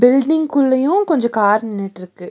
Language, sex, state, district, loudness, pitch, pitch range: Tamil, female, Tamil Nadu, Nilgiris, -16 LUFS, 250 Hz, 205-290 Hz